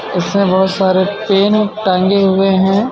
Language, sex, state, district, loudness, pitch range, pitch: Hindi, male, Jharkhand, Ranchi, -13 LUFS, 190-200 Hz, 195 Hz